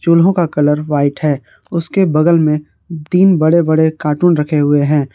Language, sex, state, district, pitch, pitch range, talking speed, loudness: Hindi, male, Jharkhand, Garhwa, 155 Hz, 150-170 Hz, 175 wpm, -13 LUFS